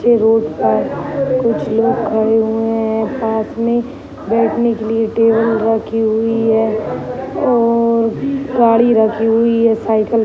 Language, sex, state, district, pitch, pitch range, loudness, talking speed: Hindi, female, Uttar Pradesh, Gorakhpur, 225 Hz, 220-230 Hz, -15 LUFS, 130 wpm